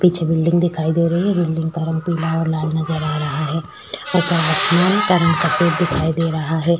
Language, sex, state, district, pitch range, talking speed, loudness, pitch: Hindi, female, Chhattisgarh, Sukma, 160-175 Hz, 220 wpm, -18 LUFS, 165 Hz